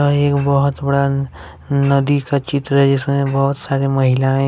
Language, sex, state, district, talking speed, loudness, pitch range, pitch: Hindi, male, Jharkhand, Ranchi, 135 wpm, -16 LUFS, 135-140 Hz, 140 Hz